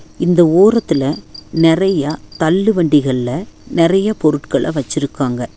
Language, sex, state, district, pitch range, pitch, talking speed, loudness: Tamil, female, Tamil Nadu, Nilgiris, 145-180 Hz, 160 Hz, 75 wpm, -15 LUFS